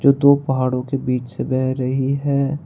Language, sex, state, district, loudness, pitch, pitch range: Hindi, male, Uttar Pradesh, Saharanpur, -19 LUFS, 135 Hz, 130-140 Hz